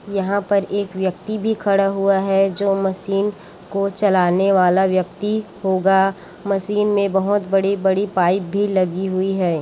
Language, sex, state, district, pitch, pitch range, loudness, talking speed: Chhattisgarhi, female, Chhattisgarh, Korba, 195 Hz, 190-200 Hz, -19 LUFS, 150 wpm